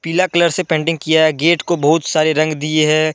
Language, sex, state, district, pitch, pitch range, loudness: Hindi, male, Jharkhand, Deoghar, 160 Hz, 155-170 Hz, -15 LUFS